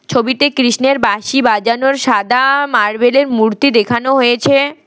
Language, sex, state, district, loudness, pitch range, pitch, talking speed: Bengali, female, West Bengal, Alipurduar, -12 LUFS, 235-275 Hz, 255 Hz, 110 wpm